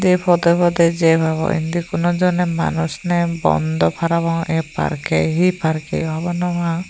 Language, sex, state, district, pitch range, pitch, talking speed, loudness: Chakma, female, Tripura, Unakoti, 160-175 Hz, 170 Hz, 155 wpm, -18 LUFS